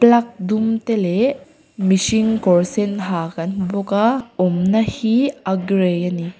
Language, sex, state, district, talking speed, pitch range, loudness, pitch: Mizo, female, Mizoram, Aizawl, 180 wpm, 185-230 Hz, -18 LUFS, 200 Hz